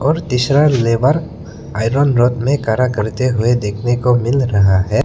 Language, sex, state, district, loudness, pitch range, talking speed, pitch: Hindi, male, Arunachal Pradesh, Lower Dibang Valley, -15 LUFS, 110-140 Hz, 165 wpm, 125 Hz